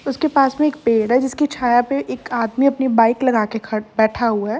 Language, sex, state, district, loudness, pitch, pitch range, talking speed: Hindi, female, Uttar Pradesh, Jalaun, -18 LUFS, 245 Hz, 225-275 Hz, 250 wpm